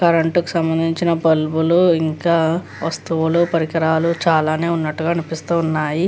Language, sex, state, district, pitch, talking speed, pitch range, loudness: Telugu, female, Andhra Pradesh, Visakhapatnam, 165 Hz, 100 wpm, 160-170 Hz, -18 LUFS